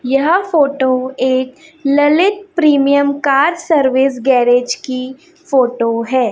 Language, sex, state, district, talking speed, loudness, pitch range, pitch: Hindi, female, Chhattisgarh, Raipur, 105 wpm, -14 LUFS, 255-310 Hz, 275 Hz